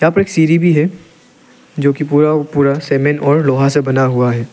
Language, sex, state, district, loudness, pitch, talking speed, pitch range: Hindi, male, Arunachal Pradesh, Lower Dibang Valley, -13 LUFS, 150 Hz, 240 wpm, 140-165 Hz